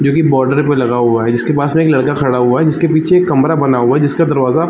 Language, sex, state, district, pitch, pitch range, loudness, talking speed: Hindi, male, Jharkhand, Jamtara, 145 Hz, 130-160 Hz, -12 LUFS, 295 wpm